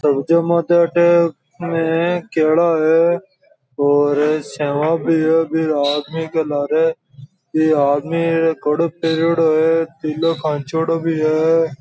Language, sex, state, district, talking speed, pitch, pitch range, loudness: Marwari, male, Rajasthan, Nagaur, 35 wpm, 160 Hz, 150-165 Hz, -17 LUFS